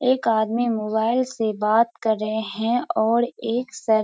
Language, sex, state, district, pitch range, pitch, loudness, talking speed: Hindi, female, Bihar, Kishanganj, 220-240 Hz, 225 Hz, -22 LUFS, 180 wpm